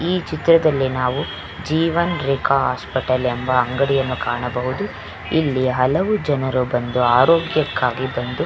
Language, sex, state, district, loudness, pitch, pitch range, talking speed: Kannada, female, Karnataka, Belgaum, -19 LUFS, 130 Hz, 125-155 Hz, 115 wpm